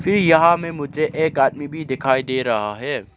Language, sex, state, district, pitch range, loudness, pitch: Hindi, male, Arunachal Pradesh, Lower Dibang Valley, 130-160 Hz, -19 LUFS, 145 Hz